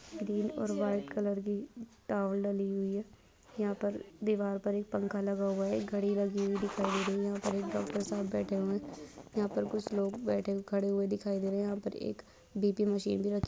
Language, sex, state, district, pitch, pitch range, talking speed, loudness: Hindi, female, Chhattisgarh, Kabirdham, 200 Hz, 200-205 Hz, 225 wpm, -34 LUFS